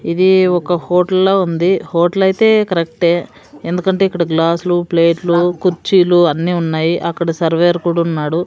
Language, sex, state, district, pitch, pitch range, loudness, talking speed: Telugu, female, Andhra Pradesh, Sri Satya Sai, 175 Hz, 170-185 Hz, -14 LUFS, 135 wpm